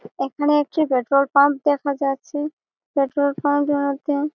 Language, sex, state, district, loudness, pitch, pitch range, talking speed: Bengali, female, West Bengal, Malda, -20 LUFS, 285 Hz, 275-295 Hz, 140 wpm